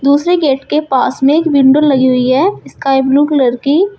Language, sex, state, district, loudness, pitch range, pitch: Hindi, female, Uttar Pradesh, Shamli, -11 LUFS, 265-300 Hz, 280 Hz